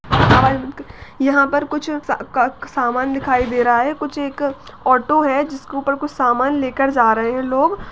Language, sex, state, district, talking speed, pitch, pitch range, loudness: Hindi, female, Uttarakhand, Tehri Garhwal, 190 wpm, 270 Hz, 240-285 Hz, -17 LUFS